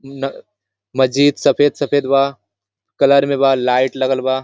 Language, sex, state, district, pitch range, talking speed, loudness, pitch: Hindi, male, Jharkhand, Sahebganj, 125-140 Hz, 135 wpm, -15 LUFS, 135 Hz